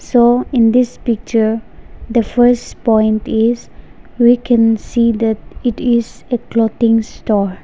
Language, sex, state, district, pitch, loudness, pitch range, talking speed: English, female, Nagaland, Dimapur, 235 Hz, -14 LUFS, 225-240 Hz, 135 wpm